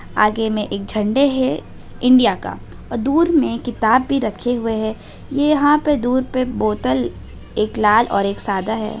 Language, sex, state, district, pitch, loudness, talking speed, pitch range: Hindi, female, Bihar, Madhepura, 230 Hz, -18 LUFS, 180 wpm, 215-260 Hz